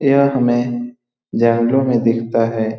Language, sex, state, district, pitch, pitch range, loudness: Hindi, male, Bihar, Saran, 120 Hz, 115-125 Hz, -16 LUFS